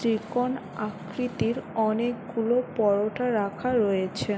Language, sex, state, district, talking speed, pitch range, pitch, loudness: Bengali, female, West Bengal, Malda, 110 wpm, 205-245 Hz, 225 Hz, -27 LUFS